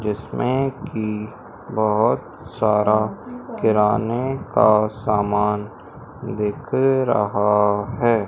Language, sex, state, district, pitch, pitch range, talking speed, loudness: Hindi, male, Madhya Pradesh, Umaria, 110 Hz, 105-125 Hz, 70 wpm, -20 LUFS